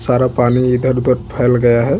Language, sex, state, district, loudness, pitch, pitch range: Hindi, male, Chhattisgarh, Bastar, -14 LUFS, 125 Hz, 120-125 Hz